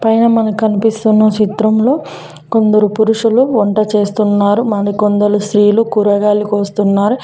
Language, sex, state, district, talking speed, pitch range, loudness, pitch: Telugu, female, Telangana, Mahabubabad, 100 wpm, 205-225 Hz, -12 LUFS, 215 Hz